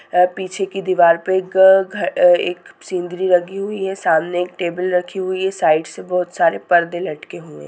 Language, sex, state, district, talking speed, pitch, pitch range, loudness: Hindi, female, Bihar, Bhagalpur, 195 wpm, 180 Hz, 175-190 Hz, -17 LUFS